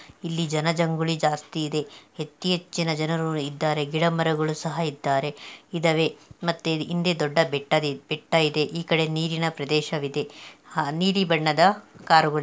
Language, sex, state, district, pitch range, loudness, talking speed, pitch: Kannada, female, Karnataka, Belgaum, 150-165 Hz, -24 LUFS, 120 wpm, 160 Hz